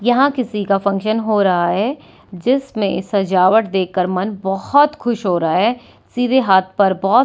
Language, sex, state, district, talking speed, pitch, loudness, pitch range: Hindi, female, Delhi, New Delhi, 175 wpm, 205 Hz, -16 LUFS, 190-245 Hz